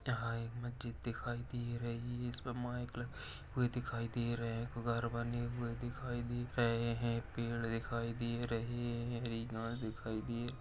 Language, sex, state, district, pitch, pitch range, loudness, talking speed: Hindi, male, Uttar Pradesh, Etah, 120 Hz, 115-120 Hz, -40 LUFS, 170 wpm